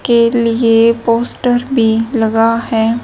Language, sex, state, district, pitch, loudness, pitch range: Hindi, female, Haryana, Jhajjar, 230 Hz, -13 LUFS, 225-235 Hz